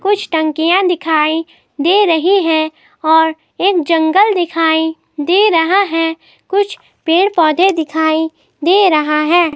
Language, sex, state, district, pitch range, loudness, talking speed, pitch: Hindi, female, Himachal Pradesh, Shimla, 320-380 Hz, -13 LUFS, 125 wpm, 330 Hz